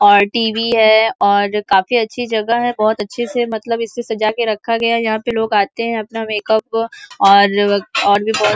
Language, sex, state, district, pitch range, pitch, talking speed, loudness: Hindi, female, Uttar Pradesh, Varanasi, 210-230 Hz, 220 Hz, 215 wpm, -15 LUFS